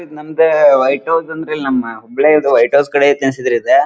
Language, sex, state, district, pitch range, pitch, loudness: Kannada, male, Karnataka, Dharwad, 135-165 Hz, 150 Hz, -13 LUFS